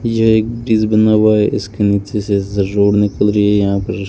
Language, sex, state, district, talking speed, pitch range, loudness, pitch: Hindi, male, Rajasthan, Bikaner, 220 wpm, 100-110 Hz, -14 LUFS, 105 Hz